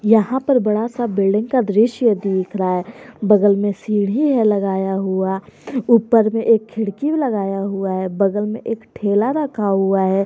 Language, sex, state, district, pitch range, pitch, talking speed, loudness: Hindi, female, Jharkhand, Garhwa, 195-230 Hz, 210 Hz, 175 wpm, -18 LUFS